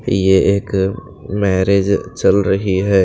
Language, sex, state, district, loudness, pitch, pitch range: Hindi, male, Bihar, Kaimur, -15 LUFS, 100 Hz, 95-100 Hz